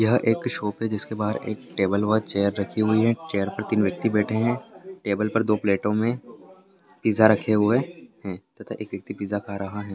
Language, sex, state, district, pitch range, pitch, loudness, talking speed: Hindi, male, Bihar, Lakhisarai, 100-115 Hz, 110 Hz, -24 LUFS, 210 wpm